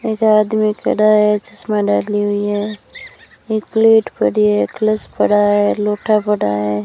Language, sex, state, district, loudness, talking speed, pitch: Hindi, female, Rajasthan, Bikaner, -15 LUFS, 155 wpm, 210 Hz